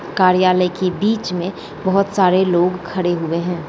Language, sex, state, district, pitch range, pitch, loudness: Hindi, female, Bihar, Gopalganj, 175-190 Hz, 180 Hz, -17 LUFS